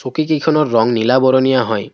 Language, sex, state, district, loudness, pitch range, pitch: Assamese, male, Assam, Kamrup Metropolitan, -14 LUFS, 115-150 Hz, 130 Hz